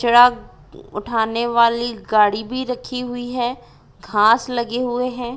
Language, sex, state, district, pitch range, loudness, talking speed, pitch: Hindi, female, Jharkhand, Jamtara, 220-245 Hz, -19 LUFS, 125 wpm, 240 Hz